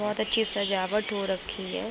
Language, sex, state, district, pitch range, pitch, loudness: Hindi, female, Uttar Pradesh, Budaun, 195-215 Hz, 205 Hz, -27 LUFS